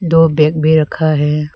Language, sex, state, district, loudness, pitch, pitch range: Hindi, female, Arunachal Pradesh, Lower Dibang Valley, -12 LUFS, 155 Hz, 150-160 Hz